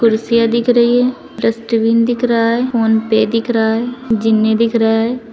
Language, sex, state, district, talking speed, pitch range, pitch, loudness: Hindi, female, Uttar Pradesh, Saharanpur, 180 wpm, 225-240 Hz, 230 Hz, -14 LUFS